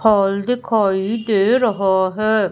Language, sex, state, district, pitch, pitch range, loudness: Hindi, female, Madhya Pradesh, Umaria, 215 Hz, 195-225 Hz, -17 LUFS